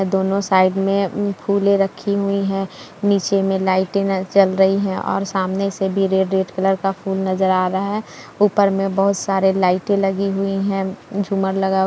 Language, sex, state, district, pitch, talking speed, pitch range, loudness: Hindi, female, Bihar, Jamui, 195 Hz, 185 wpm, 190-200 Hz, -18 LUFS